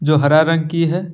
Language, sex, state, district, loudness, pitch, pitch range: Hindi, male, Jharkhand, Deoghar, -15 LUFS, 165 Hz, 155-165 Hz